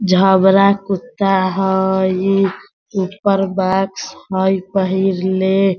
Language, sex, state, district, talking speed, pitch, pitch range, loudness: Hindi, male, Bihar, Sitamarhi, 70 wpm, 190 Hz, 190-195 Hz, -16 LUFS